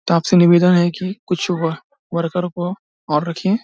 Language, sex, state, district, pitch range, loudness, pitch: Hindi, male, Bihar, Samastipur, 170-185 Hz, -18 LUFS, 175 Hz